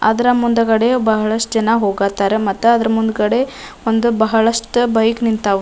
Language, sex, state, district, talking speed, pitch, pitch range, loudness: Kannada, female, Karnataka, Dharwad, 140 wpm, 225 Hz, 220-235 Hz, -15 LUFS